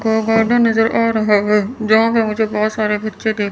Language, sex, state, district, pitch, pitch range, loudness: Hindi, female, Chandigarh, Chandigarh, 220 Hz, 215-225 Hz, -15 LUFS